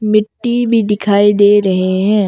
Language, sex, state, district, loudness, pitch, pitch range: Hindi, female, Arunachal Pradesh, Longding, -12 LUFS, 210 Hz, 200-215 Hz